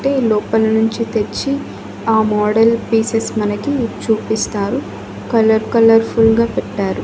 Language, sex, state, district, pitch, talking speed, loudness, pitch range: Telugu, female, Andhra Pradesh, Annamaya, 225 Hz, 120 wpm, -15 LUFS, 220-230 Hz